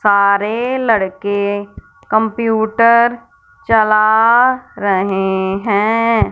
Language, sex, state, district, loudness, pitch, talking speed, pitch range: Hindi, female, Punjab, Fazilka, -14 LUFS, 215 Hz, 55 wpm, 200-230 Hz